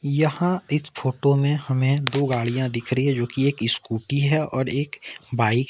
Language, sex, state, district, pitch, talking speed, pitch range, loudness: Hindi, male, Jharkhand, Ranchi, 140 Hz, 190 wpm, 130-145 Hz, -23 LUFS